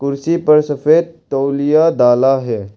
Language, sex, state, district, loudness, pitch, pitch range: Hindi, male, Arunachal Pradesh, Longding, -14 LUFS, 140 Hz, 135-155 Hz